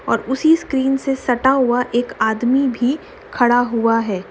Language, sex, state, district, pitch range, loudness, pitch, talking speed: Hindi, female, Uttar Pradesh, Budaun, 240-270 Hz, -17 LUFS, 250 Hz, 165 wpm